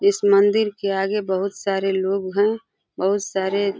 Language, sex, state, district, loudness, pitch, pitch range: Hindi, female, Uttar Pradesh, Deoria, -21 LUFS, 200 Hz, 195-205 Hz